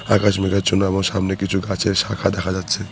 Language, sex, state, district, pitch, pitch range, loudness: Bengali, male, West Bengal, Cooch Behar, 95 Hz, 95-100 Hz, -20 LUFS